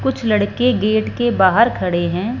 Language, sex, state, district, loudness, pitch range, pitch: Hindi, female, Punjab, Fazilka, -16 LUFS, 190-240 Hz, 215 Hz